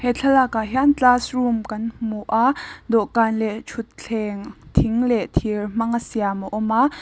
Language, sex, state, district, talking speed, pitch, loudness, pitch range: Mizo, female, Mizoram, Aizawl, 145 wpm, 230 Hz, -21 LUFS, 220-245 Hz